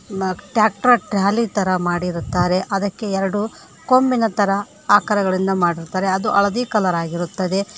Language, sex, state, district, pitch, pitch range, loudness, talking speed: Kannada, female, Karnataka, Koppal, 195 Hz, 185-210 Hz, -19 LUFS, 110 wpm